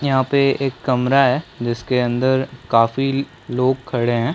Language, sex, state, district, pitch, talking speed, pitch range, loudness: Hindi, male, Chhattisgarh, Korba, 130 Hz, 150 wpm, 120-135 Hz, -19 LUFS